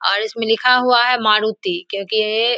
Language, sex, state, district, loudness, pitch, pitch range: Hindi, female, Bihar, Samastipur, -16 LUFS, 225 Hz, 215-250 Hz